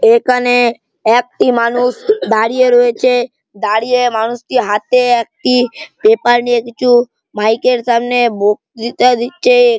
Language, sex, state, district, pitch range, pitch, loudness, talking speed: Bengali, male, West Bengal, Malda, 230-250 Hz, 245 Hz, -13 LUFS, 115 wpm